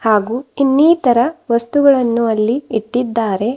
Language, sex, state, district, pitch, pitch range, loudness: Kannada, female, Karnataka, Bidar, 240 Hz, 225-275 Hz, -15 LUFS